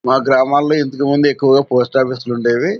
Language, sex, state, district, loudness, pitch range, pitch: Telugu, male, Andhra Pradesh, Anantapur, -14 LUFS, 130-140 Hz, 135 Hz